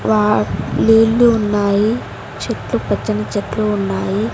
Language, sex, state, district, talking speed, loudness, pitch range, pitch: Telugu, female, Andhra Pradesh, Sri Satya Sai, 95 wpm, -16 LUFS, 205-225 Hz, 210 Hz